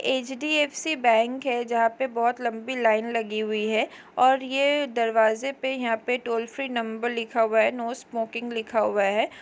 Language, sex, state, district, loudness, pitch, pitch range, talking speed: Hindi, female, Chhattisgarh, Kabirdham, -25 LUFS, 235 Hz, 225-260 Hz, 180 wpm